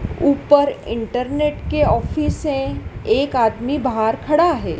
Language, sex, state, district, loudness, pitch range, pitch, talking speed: Hindi, female, Madhya Pradesh, Dhar, -19 LUFS, 245-295 Hz, 280 Hz, 125 wpm